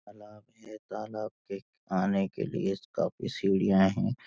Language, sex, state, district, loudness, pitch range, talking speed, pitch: Hindi, male, Uttarakhand, Uttarkashi, -30 LUFS, 95-105 Hz, 140 wpm, 100 Hz